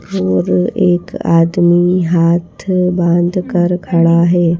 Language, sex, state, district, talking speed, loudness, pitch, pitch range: Hindi, female, Madhya Pradesh, Bhopal, 105 wpm, -13 LUFS, 175 Hz, 170-180 Hz